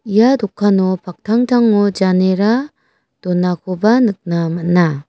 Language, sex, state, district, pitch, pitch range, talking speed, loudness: Garo, female, Meghalaya, West Garo Hills, 195 Hz, 180-220 Hz, 85 wpm, -15 LUFS